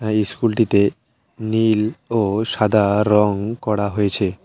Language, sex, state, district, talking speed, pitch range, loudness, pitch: Bengali, male, West Bengal, Alipurduar, 120 wpm, 100-110 Hz, -18 LUFS, 105 Hz